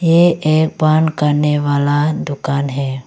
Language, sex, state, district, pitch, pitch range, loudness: Hindi, female, Arunachal Pradesh, Longding, 150 Hz, 140-155 Hz, -15 LUFS